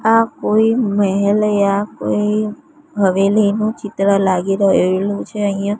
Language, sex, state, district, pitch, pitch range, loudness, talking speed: Gujarati, female, Gujarat, Gandhinagar, 205 Hz, 195-215 Hz, -16 LUFS, 115 wpm